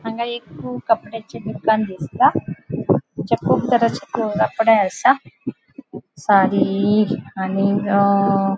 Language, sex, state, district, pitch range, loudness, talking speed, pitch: Konkani, female, Goa, North and South Goa, 195-225 Hz, -19 LUFS, 100 wpm, 200 Hz